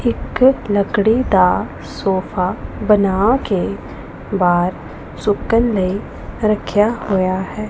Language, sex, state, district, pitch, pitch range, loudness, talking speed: Punjabi, female, Punjab, Pathankot, 205 Hz, 190-220 Hz, -17 LUFS, 95 wpm